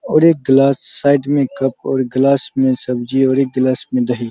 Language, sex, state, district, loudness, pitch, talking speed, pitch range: Hindi, male, Bihar, Araria, -15 LUFS, 135 Hz, 220 wpm, 130-140 Hz